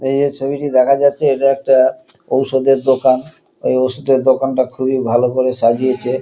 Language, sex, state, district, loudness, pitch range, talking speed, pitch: Bengali, male, West Bengal, Kolkata, -15 LUFS, 130-135 Hz, 145 wpm, 130 Hz